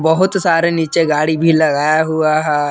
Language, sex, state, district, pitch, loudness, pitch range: Hindi, male, Jharkhand, Palamu, 160 Hz, -14 LUFS, 155-165 Hz